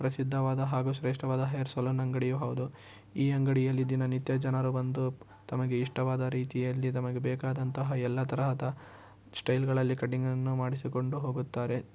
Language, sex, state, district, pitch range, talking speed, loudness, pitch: Kannada, male, Karnataka, Shimoga, 125-130 Hz, 125 wpm, -32 LUFS, 130 Hz